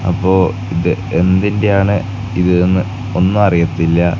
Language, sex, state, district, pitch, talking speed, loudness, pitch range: Malayalam, male, Kerala, Kasaragod, 95 Hz, 100 wpm, -14 LUFS, 90-100 Hz